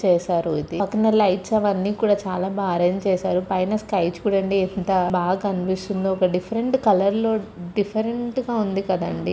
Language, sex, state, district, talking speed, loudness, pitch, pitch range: Telugu, female, Andhra Pradesh, Chittoor, 150 wpm, -22 LUFS, 195 Hz, 185-210 Hz